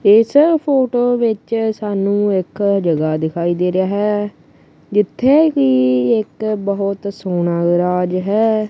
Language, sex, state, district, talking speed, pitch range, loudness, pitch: Punjabi, female, Punjab, Kapurthala, 115 wpm, 180-220 Hz, -16 LUFS, 200 Hz